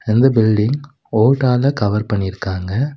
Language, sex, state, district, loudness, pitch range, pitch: Tamil, male, Tamil Nadu, Nilgiris, -17 LUFS, 105-135 Hz, 110 Hz